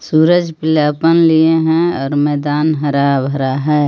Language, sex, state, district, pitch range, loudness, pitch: Hindi, female, Jharkhand, Palamu, 145-160 Hz, -13 LUFS, 150 Hz